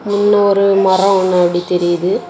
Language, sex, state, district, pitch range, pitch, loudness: Tamil, female, Tamil Nadu, Kanyakumari, 180-200 Hz, 190 Hz, -13 LUFS